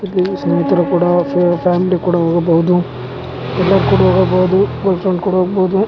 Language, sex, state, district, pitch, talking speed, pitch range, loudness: Kannada, male, Karnataka, Raichur, 180 Hz, 145 wpm, 175-185 Hz, -14 LUFS